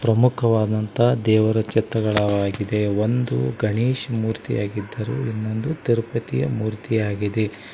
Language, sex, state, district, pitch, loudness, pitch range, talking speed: Kannada, male, Karnataka, Koppal, 110 Hz, -22 LUFS, 105-115 Hz, 70 wpm